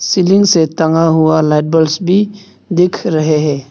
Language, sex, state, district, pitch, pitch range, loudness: Hindi, male, Arunachal Pradesh, Papum Pare, 165 Hz, 155-185 Hz, -12 LUFS